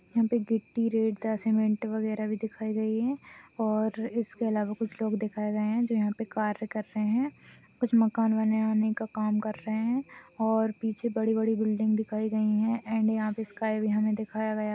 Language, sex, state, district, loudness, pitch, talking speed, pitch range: Hindi, female, Chhattisgarh, Balrampur, -29 LUFS, 220 Hz, 195 wpm, 215-225 Hz